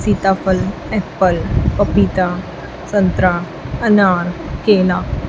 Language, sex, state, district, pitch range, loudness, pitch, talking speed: Hindi, female, Chhattisgarh, Raipur, 180-200 Hz, -16 LUFS, 185 Hz, 70 wpm